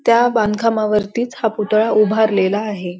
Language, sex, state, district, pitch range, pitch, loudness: Marathi, female, Maharashtra, Pune, 210-225 Hz, 215 Hz, -17 LUFS